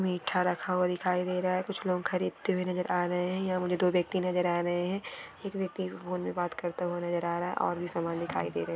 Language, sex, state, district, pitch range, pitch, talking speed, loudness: Hindi, female, Maharashtra, Sindhudurg, 175-185 Hz, 180 Hz, 275 wpm, -31 LUFS